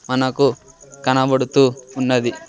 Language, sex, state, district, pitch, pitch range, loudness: Telugu, male, Andhra Pradesh, Sri Satya Sai, 130 Hz, 130-140 Hz, -18 LUFS